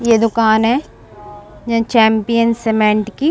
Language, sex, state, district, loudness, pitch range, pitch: Hindi, female, Bihar, Saran, -14 LUFS, 220-230 Hz, 230 Hz